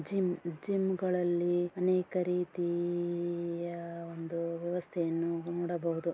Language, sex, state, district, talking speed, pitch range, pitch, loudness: Kannada, female, Karnataka, Dharwad, 90 wpm, 170-180 Hz, 175 Hz, -33 LUFS